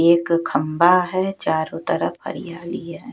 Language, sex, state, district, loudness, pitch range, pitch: Hindi, female, Chhattisgarh, Raipur, -21 LUFS, 160-180 Hz, 170 Hz